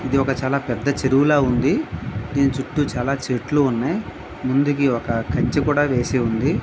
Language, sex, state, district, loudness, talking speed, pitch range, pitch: Telugu, male, Andhra Pradesh, Visakhapatnam, -20 LUFS, 155 wpm, 125-140 Hz, 135 Hz